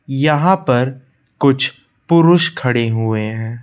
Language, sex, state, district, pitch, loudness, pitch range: Hindi, male, Madhya Pradesh, Bhopal, 130 Hz, -15 LUFS, 120-150 Hz